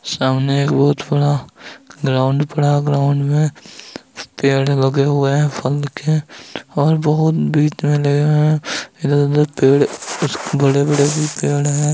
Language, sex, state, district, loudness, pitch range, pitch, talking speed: Hindi, male, Uttar Pradesh, Jalaun, -16 LUFS, 140-150 Hz, 145 Hz, 115 wpm